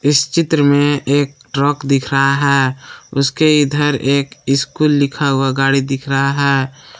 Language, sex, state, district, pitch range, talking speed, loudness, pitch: Hindi, male, Jharkhand, Palamu, 135-145 Hz, 155 wpm, -15 LUFS, 140 Hz